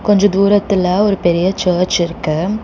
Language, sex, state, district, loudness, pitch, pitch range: Tamil, female, Tamil Nadu, Chennai, -14 LUFS, 190 Hz, 175-205 Hz